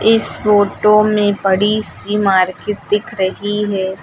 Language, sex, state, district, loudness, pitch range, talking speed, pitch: Hindi, female, Uttar Pradesh, Lucknow, -15 LUFS, 195-210 Hz, 135 wpm, 205 Hz